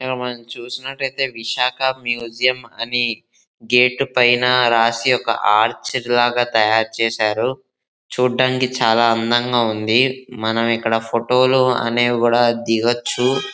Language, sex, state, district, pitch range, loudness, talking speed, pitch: Telugu, male, Andhra Pradesh, Visakhapatnam, 115-125 Hz, -17 LUFS, 100 wpm, 120 Hz